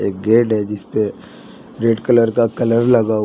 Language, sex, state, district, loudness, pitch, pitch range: Hindi, male, Jharkhand, Ranchi, -16 LUFS, 115 Hz, 110-115 Hz